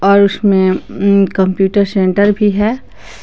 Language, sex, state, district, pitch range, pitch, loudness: Hindi, female, Jharkhand, Palamu, 190-205 Hz, 200 Hz, -12 LUFS